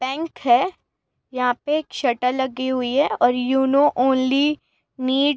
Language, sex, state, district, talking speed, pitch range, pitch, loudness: Hindi, female, Uttar Pradesh, Gorakhpur, 155 wpm, 255-290 Hz, 265 Hz, -20 LUFS